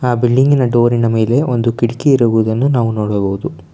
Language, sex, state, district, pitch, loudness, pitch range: Kannada, male, Karnataka, Bangalore, 120 Hz, -14 LUFS, 110-125 Hz